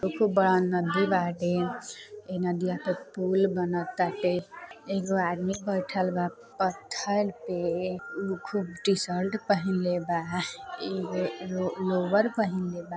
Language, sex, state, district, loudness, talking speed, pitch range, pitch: Bhojpuri, female, Uttar Pradesh, Deoria, -29 LUFS, 135 wpm, 180-200 Hz, 185 Hz